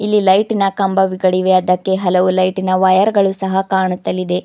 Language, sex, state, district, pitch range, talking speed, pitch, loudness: Kannada, female, Karnataka, Bidar, 185-195 Hz, 160 wpm, 190 Hz, -15 LUFS